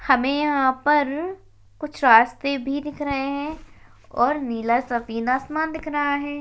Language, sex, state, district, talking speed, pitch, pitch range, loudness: Hindi, female, Uttarakhand, Uttarkashi, 150 wpm, 280 Hz, 250-295 Hz, -22 LUFS